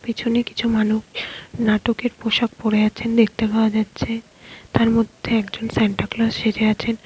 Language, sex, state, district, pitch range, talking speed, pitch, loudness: Bengali, female, West Bengal, Alipurduar, 215-230 Hz, 145 wpm, 225 Hz, -20 LUFS